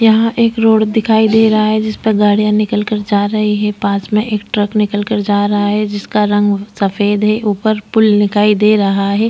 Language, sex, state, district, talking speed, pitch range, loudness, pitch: Hindi, female, Maharashtra, Chandrapur, 220 wpm, 205-215 Hz, -13 LUFS, 210 Hz